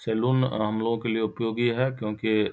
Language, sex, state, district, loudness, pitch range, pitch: Maithili, male, Bihar, Samastipur, -26 LUFS, 110-120 Hz, 115 Hz